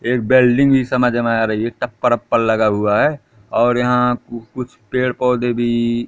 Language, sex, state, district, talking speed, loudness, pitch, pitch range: Hindi, male, Madhya Pradesh, Katni, 195 wpm, -16 LUFS, 120 Hz, 115-125 Hz